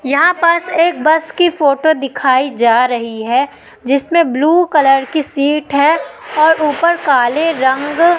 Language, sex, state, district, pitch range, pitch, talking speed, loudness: Hindi, female, Madhya Pradesh, Katni, 270-330 Hz, 295 Hz, 145 wpm, -13 LUFS